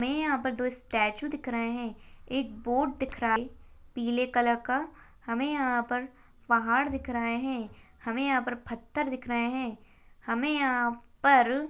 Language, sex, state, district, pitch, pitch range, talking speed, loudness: Hindi, female, Chhattisgarh, Jashpur, 250 Hz, 235-265 Hz, 170 wpm, -29 LUFS